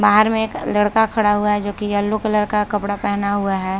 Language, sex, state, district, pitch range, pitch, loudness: Hindi, female, Bihar, Saharsa, 205-210 Hz, 210 Hz, -18 LUFS